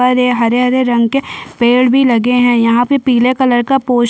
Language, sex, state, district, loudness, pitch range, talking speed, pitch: Hindi, female, Chhattisgarh, Sukma, -12 LUFS, 240-255 Hz, 235 wpm, 250 Hz